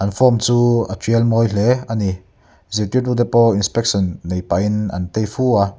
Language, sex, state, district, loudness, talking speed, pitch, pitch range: Mizo, male, Mizoram, Aizawl, -17 LUFS, 185 wpm, 110 Hz, 100-120 Hz